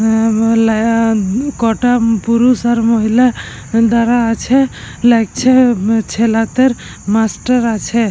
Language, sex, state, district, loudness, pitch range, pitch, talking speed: Bengali, female, Jharkhand, Jamtara, -13 LUFS, 225-245 Hz, 230 Hz, 90 wpm